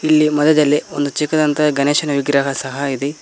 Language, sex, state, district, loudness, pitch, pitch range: Kannada, male, Karnataka, Koppal, -16 LUFS, 145 Hz, 140-150 Hz